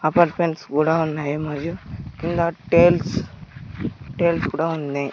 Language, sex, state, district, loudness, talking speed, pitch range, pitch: Telugu, male, Andhra Pradesh, Sri Satya Sai, -21 LUFS, 105 wpm, 150-170 Hz, 165 Hz